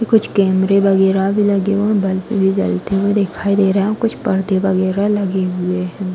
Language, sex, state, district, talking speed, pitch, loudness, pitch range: Hindi, female, Uttar Pradesh, Varanasi, 205 wpm, 195 Hz, -16 LUFS, 190-200 Hz